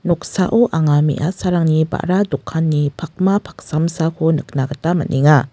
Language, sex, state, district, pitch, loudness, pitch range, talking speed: Garo, female, Meghalaya, West Garo Hills, 160 Hz, -17 LUFS, 150-180 Hz, 110 wpm